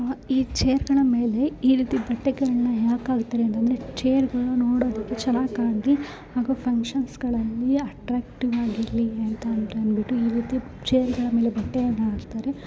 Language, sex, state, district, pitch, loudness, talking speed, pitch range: Kannada, female, Karnataka, Bellary, 245 Hz, -24 LUFS, 140 wpm, 230-260 Hz